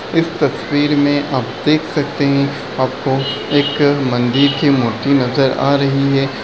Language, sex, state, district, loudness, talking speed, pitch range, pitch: Hindi, male, Bihar, Darbhanga, -15 LUFS, 150 wpm, 135-145 Hz, 140 Hz